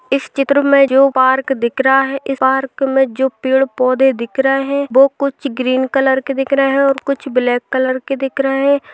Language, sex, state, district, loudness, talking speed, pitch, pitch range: Hindi, female, Bihar, Lakhisarai, -14 LUFS, 215 wpm, 270 Hz, 260-275 Hz